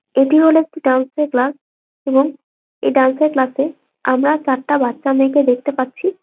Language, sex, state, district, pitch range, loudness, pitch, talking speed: Bengali, female, West Bengal, Jalpaiguri, 260-300 Hz, -16 LUFS, 275 Hz, 185 wpm